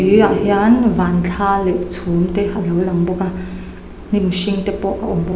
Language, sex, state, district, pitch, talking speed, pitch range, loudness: Mizo, female, Mizoram, Aizawl, 190 Hz, 200 wpm, 180-200 Hz, -16 LUFS